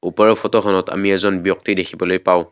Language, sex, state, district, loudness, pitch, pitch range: Assamese, male, Assam, Kamrup Metropolitan, -17 LUFS, 95 Hz, 90-100 Hz